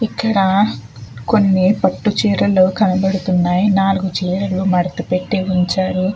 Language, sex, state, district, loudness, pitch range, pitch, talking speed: Telugu, female, Andhra Pradesh, Chittoor, -16 LUFS, 185-195 Hz, 190 Hz, 105 wpm